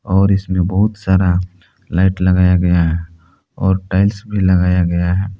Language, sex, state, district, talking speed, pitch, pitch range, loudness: Hindi, male, Jharkhand, Palamu, 155 wpm, 90 Hz, 90-95 Hz, -15 LUFS